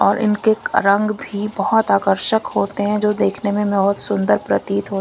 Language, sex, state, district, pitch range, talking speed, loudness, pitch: Hindi, female, Punjab, Kapurthala, 200-215 Hz, 170 wpm, -18 LUFS, 205 Hz